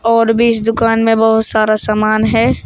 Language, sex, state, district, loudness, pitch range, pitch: Hindi, male, Uttar Pradesh, Shamli, -12 LUFS, 215-230 Hz, 225 Hz